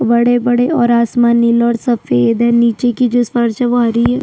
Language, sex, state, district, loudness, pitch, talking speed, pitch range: Hindi, female, Chhattisgarh, Sukma, -13 LUFS, 235 Hz, 215 wpm, 235-245 Hz